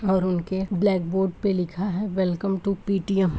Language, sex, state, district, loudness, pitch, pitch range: Hindi, male, Uttar Pradesh, Etah, -25 LUFS, 190 Hz, 185-195 Hz